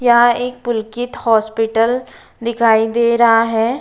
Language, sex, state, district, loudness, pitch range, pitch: Hindi, female, Uttar Pradesh, Budaun, -15 LUFS, 225-240 Hz, 235 Hz